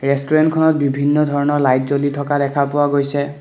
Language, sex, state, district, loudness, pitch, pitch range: Assamese, male, Assam, Kamrup Metropolitan, -16 LUFS, 145 Hz, 140-145 Hz